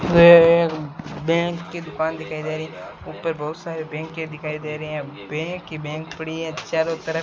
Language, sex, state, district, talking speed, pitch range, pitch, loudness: Hindi, male, Rajasthan, Bikaner, 175 wpm, 155-165 Hz, 160 Hz, -21 LUFS